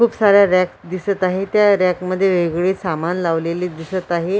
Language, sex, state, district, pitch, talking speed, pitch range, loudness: Marathi, female, Maharashtra, Washim, 185 Hz, 175 wpm, 175-195 Hz, -17 LUFS